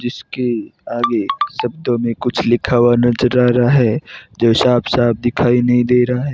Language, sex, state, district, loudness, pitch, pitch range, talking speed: Hindi, male, Rajasthan, Bikaner, -15 LUFS, 120 Hz, 120-125 Hz, 170 wpm